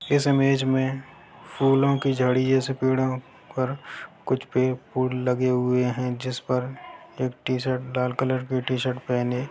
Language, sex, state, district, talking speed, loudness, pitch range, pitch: Hindi, male, Bihar, Sitamarhi, 145 wpm, -24 LUFS, 125-135 Hz, 130 Hz